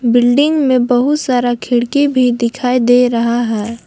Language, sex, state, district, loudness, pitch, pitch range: Hindi, female, Jharkhand, Palamu, -13 LUFS, 245 Hz, 240-255 Hz